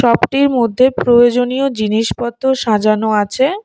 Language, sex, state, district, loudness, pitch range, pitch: Bengali, female, West Bengal, Alipurduar, -14 LUFS, 220-265 Hz, 240 Hz